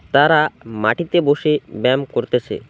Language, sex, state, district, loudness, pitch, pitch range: Bengali, male, West Bengal, Alipurduar, -17 LUFS, 140 Hz, 120-150 Hz